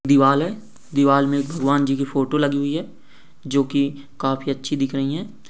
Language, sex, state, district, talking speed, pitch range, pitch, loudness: Hindi, male, Andhra Pradesh, Guntur, 195 wpm, 135-145 Hz, 140 Hz, -21 LUFS